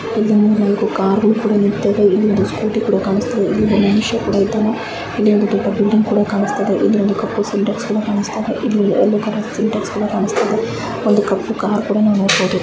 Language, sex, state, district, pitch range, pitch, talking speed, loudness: Kannada, female, Karnataka, Mysore, 205-215 Hz, 210 Hz, 185 wpm, -16 LUFS